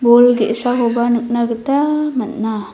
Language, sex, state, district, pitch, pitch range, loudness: Garo, female, Meghalaya, South Garo Hills, 240 Hz, 230-250 Hz, -16 LUFS